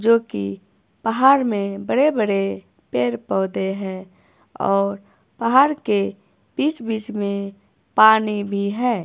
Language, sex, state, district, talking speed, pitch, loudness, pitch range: Hindi, female, Himachal Pradesh, Shimla, 115 wpm, 200 Hz, -20 LUFS, 195-230 Hz